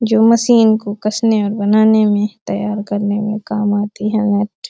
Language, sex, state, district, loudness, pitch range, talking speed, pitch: Hindi, female, Uttar Pradesh, Deoria, -15 LUFS, 205-220 Hz, 190 wpm, 210 Hz